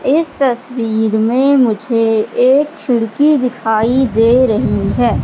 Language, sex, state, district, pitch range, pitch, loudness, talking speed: Hindi, female, Madhya Pradesh, Katni, 225-265 Hz, 245 Hz, -13 LUFS, 115 wpm